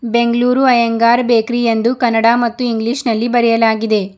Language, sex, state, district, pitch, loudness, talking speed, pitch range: Kannada, male, Karnataka, Bidar, 235 Hz, -14 LUFS, 130 wpm, 230-240 Hz